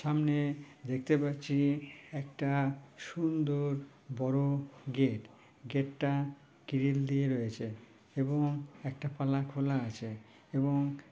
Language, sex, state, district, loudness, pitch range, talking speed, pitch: Bengali, male, West Bengal, Purulia, -34 LUFS, 135-145 Hz, 100 wpm, 140 Hz